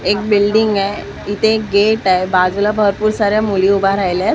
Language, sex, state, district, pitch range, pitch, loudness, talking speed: Marathi, female, Maharashtra, Mumbai Suburban, 195-215 Hz, 205 Hz, -14 LUFS, 180 wpm